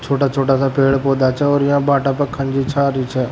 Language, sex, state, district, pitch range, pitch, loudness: Rajasthani, male, Rajasthan, Churu, 135-140 Hz, 135 Hz, -16 LUFS